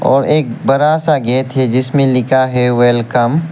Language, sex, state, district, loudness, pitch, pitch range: Hindi, male, Arunachal Pradesh, Lower Dibang Valley, -13 LUFS, 130 Hz, 125-145 Hz